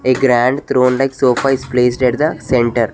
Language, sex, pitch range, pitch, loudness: English, male, 125-135 Hz, 130 Hz, -14 LUFS